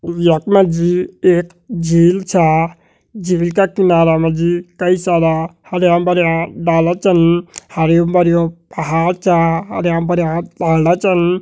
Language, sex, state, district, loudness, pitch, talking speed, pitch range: Hindi, male, Uttarakhand, Tehri Garhwal, -14 LUFS, 170 Hz, 110 wpm, 165-180 Hz